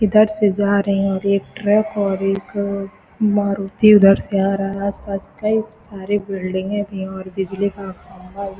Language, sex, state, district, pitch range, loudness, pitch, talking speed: Hindi, female, Uttar Pradesh, Gorakhpur, 195-205 Hz, -18 LUFS, 200 Hz, 195 wpm